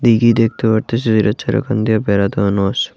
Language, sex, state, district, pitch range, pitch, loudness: Bengali, male, Tripura, West Tripura, 105-115 Hz, 110 Hz, -15 LUFS